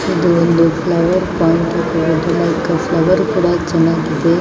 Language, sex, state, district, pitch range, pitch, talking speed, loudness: Kannada, female, Karnataka, Mysore, 165-170 Hz, 170 Hz, 150 wpm, -14 LUFS